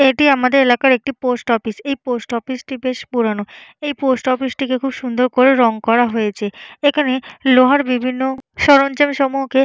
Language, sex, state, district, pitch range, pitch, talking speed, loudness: Bengali, female, Jharkhand, Jamtara, 245-275 Hz, 260 Hz, 170 wpm, -16 LUFS